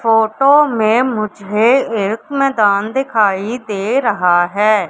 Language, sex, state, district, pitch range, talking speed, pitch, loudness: Hindi, female, Madhya Pradesh, Katni, 205-255 Hz, 110 wpm, 215 Hz, -14 LUFS